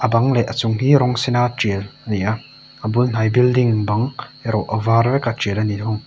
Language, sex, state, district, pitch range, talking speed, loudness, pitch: Mizo, male, Mizoram, Aizawl, 110-125 Hz, 255 wpm, -18 LUFS, 115 Hz